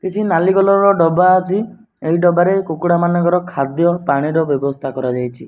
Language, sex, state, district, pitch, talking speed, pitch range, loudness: Odia, male, Odisha, Nuapada, 175 Hz, 155 wpm, 155-190 Hz, -15 LUFS